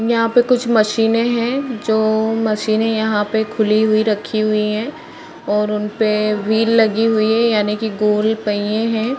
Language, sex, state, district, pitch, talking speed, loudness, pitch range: Hindi, female, Uttar Pradesh, Varanasi, 220 Hz, 175 wpm, -17 LUFS, 215-230 Hz